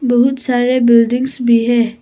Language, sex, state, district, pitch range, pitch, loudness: Hindi, female, Arunachal Pradesh, Papum Pare, 235-250 Hz, 245 Hz, -13 LUFS